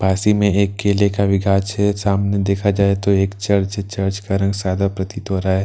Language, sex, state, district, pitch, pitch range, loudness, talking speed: Hindi, male, Bihar, Katihar, 100 Hz, 95-100 Hz, -18 LUFS, 265 wpm